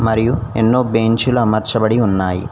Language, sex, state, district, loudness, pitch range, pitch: Telugu, male, Telangana, Mahabubabad, -15 LUFS, 110-120 Hz, 115 Hz